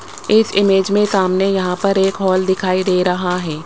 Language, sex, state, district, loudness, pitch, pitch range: Hindi, male, Rajasthan, Jaipur, -16 LUFS, 190 Hz, 185-195 Hz